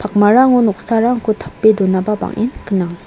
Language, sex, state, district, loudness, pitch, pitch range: Garo, female, Meghalaya, South Garo Hills, -14 LUFS, 210 Hz, 195-230 Hz